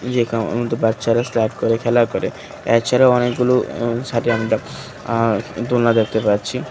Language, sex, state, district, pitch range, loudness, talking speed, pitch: Bengali, male, Tripura, West Tripura, 115-125 Hz, -18 LUFS, 135 wpm, 115 Hz